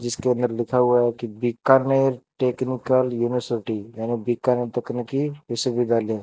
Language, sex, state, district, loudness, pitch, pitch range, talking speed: Hindi, male, Rajasthan, Bikaner, -23 LUFS, 120 Hz, 120-130 Hz, 125 wpm